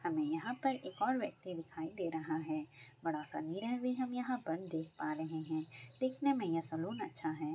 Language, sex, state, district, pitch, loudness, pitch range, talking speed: Hindi, female, Bihar, Darbhanga, 165 Hz, -39 LUFS, 160-235 Hz, 215 wpm